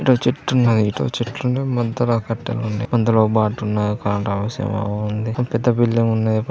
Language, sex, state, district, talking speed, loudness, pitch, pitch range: Telugu, male, Andhra Pradesh, Srikakulam, 145 wpm, -20 LUFS, 115 Hz, 105-120 Hz